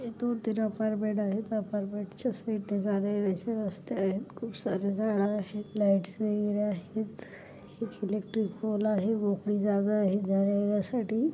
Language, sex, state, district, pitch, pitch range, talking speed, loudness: Marathi, female, Maharashtra, Pune, 210 Hz, 200-220 Hz, 130 wpm, -31 LUFS